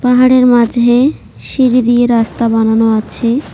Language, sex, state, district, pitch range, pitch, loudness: Bengali, female, West Bengal, Cooch Behar, 230-250 Hz, 240 Hz, -11 LUFS